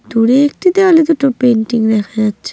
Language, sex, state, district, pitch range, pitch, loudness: Bengali, female, West Bengal, North 24 Parganas, 220-310 Hz, 245 Hz, -12 LUFS